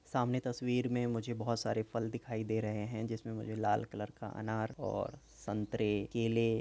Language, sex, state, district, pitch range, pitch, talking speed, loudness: Hindi, male, Uttar Pradesh, Jyotiba Phule Nagar, 110-115 Hz, 110 Hz, 190 wpm, -37 LUFS